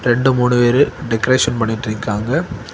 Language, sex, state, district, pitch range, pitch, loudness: Tamil, male, Tamil Nadu, Kanyakumari, 115-130 Hz, 120 Hz, -16 LUFS